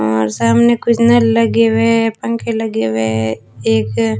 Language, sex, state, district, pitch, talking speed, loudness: Hindi, female, Rajasthan, Jaisalmer, 220 Hz, 170 wpm, -14 LUFS